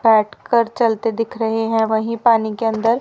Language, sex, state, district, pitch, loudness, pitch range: Hindi, male, Haryana, Rohtak, 225 Hz, -18 LUFS, 220-230 Hz